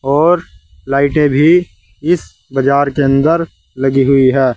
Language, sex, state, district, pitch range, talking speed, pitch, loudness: Hindi, male, Uttar Pradesh, Saharanpur, 130-150 Hz, 130 wpm, 140 Hz, -13 LUFS